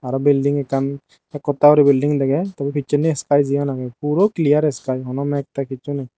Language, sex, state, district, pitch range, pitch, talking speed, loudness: Chakma, male, Tripura, Dhalai, 135-145 Hz, 140 Hz, 195 wpm, -19 LUFS